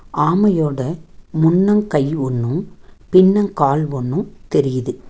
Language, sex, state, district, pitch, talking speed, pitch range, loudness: Tamil, female, Tamil Nadu, Nilgiris, 160 Hz, 80 wpm, 135-185 Hz, -17 LUFS